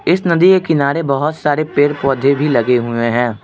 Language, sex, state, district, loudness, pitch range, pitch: Hindi, male, Arunachal Pradesh, Lower Dibang Valley, -14 LUFS, 125-160 Hz, 145 Hz